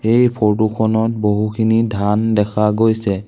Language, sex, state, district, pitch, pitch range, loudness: Assamese, male, Assam, Sonitpur, 110 Hz, 105-110 Hz, -16 LUFS